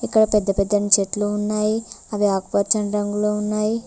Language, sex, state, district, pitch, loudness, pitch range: Telugu, female, Telangana, Mahabubabad, 210 Hz, -20 LUFS, 205-215 Hz